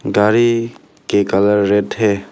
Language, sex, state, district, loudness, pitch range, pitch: Hindi, male, Arunachal Pradesh, Papum Pare, -15 LUFS, 100-115 Hz, 105 Hz